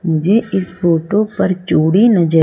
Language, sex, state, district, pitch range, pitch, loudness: Hindi, female, Madhya Pradesh, Umaria, 165-200 Hz, 180 Hz, -14 LUFS